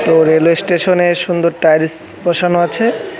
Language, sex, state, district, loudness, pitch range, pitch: Bengali, male, West Bengal, Cooch Behar, -13 LUFS, 165-180 Hz, 175 Hz